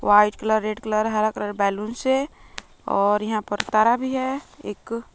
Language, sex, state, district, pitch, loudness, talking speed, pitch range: Hindi, female, Jharkhand, Palamu, 215 Hz, -23 LUFS, 175 wpm, 210-235 Hz